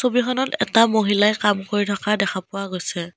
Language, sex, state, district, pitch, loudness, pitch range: Assamese, female, Assam, Kamrup Metropolitan, 205 Hz, -20 LUFS, 195-225 Hz